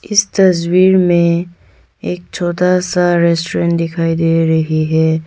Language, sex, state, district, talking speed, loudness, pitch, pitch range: Hindi, female, Arunachal Pradesh, Longding, 125 wpm, -13 LUFS, 170 Hz, 165-180 Hz